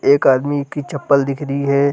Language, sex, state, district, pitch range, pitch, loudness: Hindi, male, Bihar, Gaya, 140-145 Hz, 140 Hz, -17 LUFS